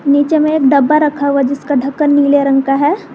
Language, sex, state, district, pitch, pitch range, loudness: Hindi, female, Jharkhand, Garhwa, 285 Hz, 280-300 Hz, -12 LUFS